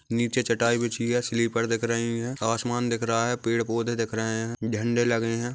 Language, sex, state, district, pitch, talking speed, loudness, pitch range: Hindi, male, Maharashtra, Aurangabad, 115 Hz, 215 wpm, -26 LUFS, 115-120 Hz